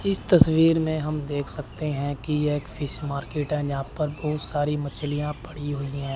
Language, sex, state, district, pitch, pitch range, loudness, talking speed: Hindi, male, Chandigarh, Chandigarh, 150 Hz, 145-150 Hz, -25 LUFS, 205 wpm